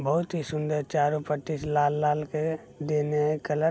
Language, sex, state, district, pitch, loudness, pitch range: Maithili, male, Bihar, Begusarai, 150 Hz, -28 LUFS, 150-155 Hz